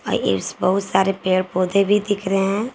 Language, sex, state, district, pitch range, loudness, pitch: Hindi, female, Jharkhand, Garhwa, 185-200 Hz, -19 LUFS, 195 Hz